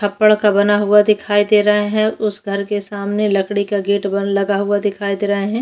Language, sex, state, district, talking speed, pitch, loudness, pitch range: Hindi, female, Chhattisgarh, Bastar, 235 wpm, 205 Hz, -16 LUFS, 200-210 Hz